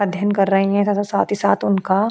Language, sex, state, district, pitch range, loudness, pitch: Hindi, female, Uttar Pradesh, Jyotiba Phule Nagar, 195-205 Hz, -18 LUFS, 200 Hz